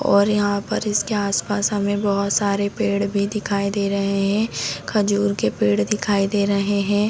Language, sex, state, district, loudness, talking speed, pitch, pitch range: Hindi, female, Chhattisgarh, Bastar, -20 LUFS, 170 wpm, 200 Hz, 200-205 Hz